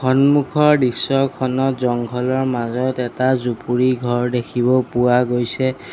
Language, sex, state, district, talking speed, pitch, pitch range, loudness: Assamese, male, Assam, Sonitpur, 110 wpm, 125 Hz, 125-130 Hz, -18 LUFS